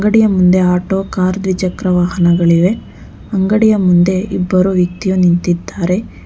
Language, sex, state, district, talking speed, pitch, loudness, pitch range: Kannada, female, Karnataka, Bangalore, 105 wpm, 185 Hz, -13 LUFS, 180-190 Hz